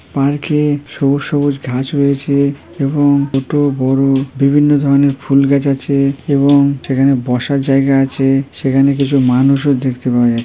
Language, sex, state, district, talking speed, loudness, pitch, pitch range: Bengali, female, West Bengal, Purulia, 145 wpm, -13 LUFS, 140 Hz, 135-140 Hz